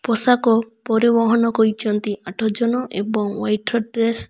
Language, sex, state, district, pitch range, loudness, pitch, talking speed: Odia, male, Odisha, Malkangiri, 215-235 Hz, -18 LUFS, 225 Hz, 100 wpm